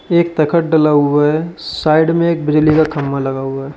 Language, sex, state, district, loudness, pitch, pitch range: Hindi, male, Uttar Pradesh, Lalitpur, -14 LUFS, 155 Hz, 145-165 Hz